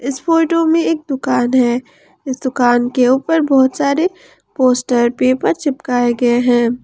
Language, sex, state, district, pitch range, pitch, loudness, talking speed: Hindi, female, Jharkhand, Ranchi, 245-295 Hz, 260 Hz, -15 LUFS, 150 wpm